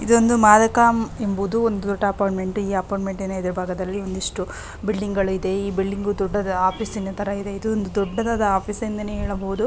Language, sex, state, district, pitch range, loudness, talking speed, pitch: Kannada, female, Karnataka, Dakshina Kannada, 195-215 Hz, -22 LUFS, 155 wpm, 200 Hz